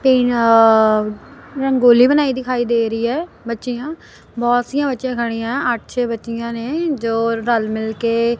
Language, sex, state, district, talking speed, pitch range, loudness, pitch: Punjabi, female, Punjab, Kapurthala, 150 wpm, 230-255 Hz, -17 LUFS, 235 Hz